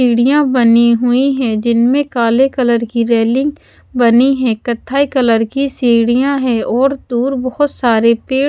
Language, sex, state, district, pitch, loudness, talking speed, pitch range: Hindi, female, Haryana, Charkhi Dadri, 245 Hz, -13 LUFS, 155 wpm, 235-270 Hz